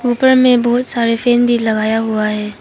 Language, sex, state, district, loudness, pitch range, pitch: Hindi, female, Arunachal Pradesh, Papum Pare, -14 LUFS, 220-245 Hz, 235 Hz